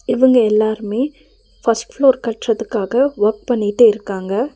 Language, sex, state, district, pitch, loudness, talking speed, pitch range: Tamil, female, Tamil Nadu, Nilgiris, 230 Hz, -16 LUFS, 105 wpm, 215-255 Hz